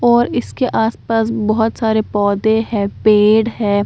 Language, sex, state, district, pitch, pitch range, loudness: Hindi, female, Bihar, Katihar, 220 Hz, 210-225 Hz, -15 LUFS